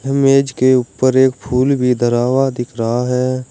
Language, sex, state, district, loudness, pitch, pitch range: Hindi, male, Uttar Pradesh, Saharanpur, -15 LUFS, 130 Hz, 125-130 Hz